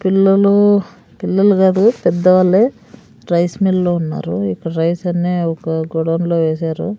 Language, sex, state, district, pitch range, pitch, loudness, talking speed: Telugu, female, Andhra Pradesh, Sri Satya Sai, 165-195 Hz, 180 Hz, -15 LUFS, 120 wpm